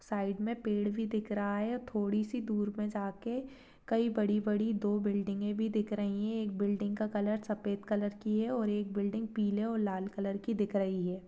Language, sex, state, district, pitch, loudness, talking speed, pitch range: Hindi, female, Uttarakhand, Uttarkashi, 210 Hz, -34 LUFS, 215 wpm, 205-220 Hz